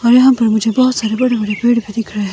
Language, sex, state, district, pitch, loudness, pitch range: Hindi, female, Himachal Pradesh, Shimla, 230 Hz, -14 LUFS, 215-245 Hz